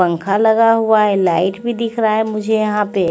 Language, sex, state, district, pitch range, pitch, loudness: Hindi, female, Chandigarh, Chandigarh, 195-220 Hz, 215 Hz, -15 LUFS